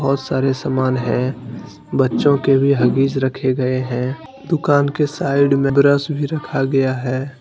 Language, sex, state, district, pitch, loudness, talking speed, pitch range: Hindi, male, Jharkhand, Deoghar, 135 Hz, -17 LUFS, 160 wpm, 130-140 Hz